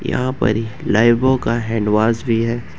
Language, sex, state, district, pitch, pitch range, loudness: Hindi, male, Jharkhand, Ranchi, 115 Hz, 110-120 Hz, -17 LUFS